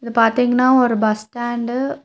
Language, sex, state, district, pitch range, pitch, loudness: Tamil, female, Tamil Nadu, Nilgiris, 230-255 Hz, 240 Hz, -17 LUFS